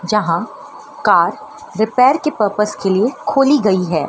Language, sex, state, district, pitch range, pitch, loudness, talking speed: Hindi, female, Madhya Pradesh, Dhar, 195-255 Hz, 210 Hz, -15 LUFS, 145 wpm